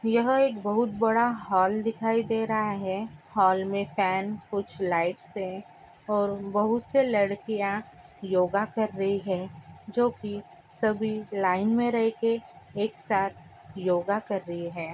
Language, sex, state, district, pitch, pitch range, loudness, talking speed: Hindi, female, Andhra Pradesh, Anantapur, 205 Hz, 190-225 Hz, -27 LUFS, 150 wpm